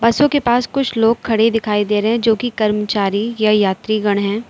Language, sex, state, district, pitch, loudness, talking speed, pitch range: Hindi, female, Uttar Pradesh, Lucknow, 225 Hz, -16 LUFS, 185 wpm, 210-235 Hz